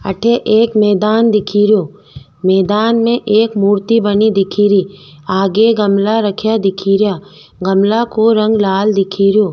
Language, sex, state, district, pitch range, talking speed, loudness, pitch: Rajasthani, female, Rajasthan, Nagaur, 195-220 Hz, 145 wpm, -13 LUFS, 205 Hz